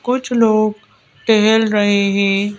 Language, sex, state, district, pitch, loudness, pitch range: Hindi, female, Madhya Pradesh, Bhopal, 215 Hz, -15 LUFS, 205-225 Hz